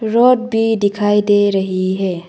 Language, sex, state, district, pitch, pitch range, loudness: Hindi, female, Arunachal Pradesh, Longding, 205 Hz, 190-225 Hz, -15 LUFS